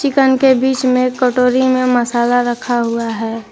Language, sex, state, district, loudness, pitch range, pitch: Hindi, female, Jharkhand, Garhwa, -14 LUFS, 240-260 Hz, 250 Hz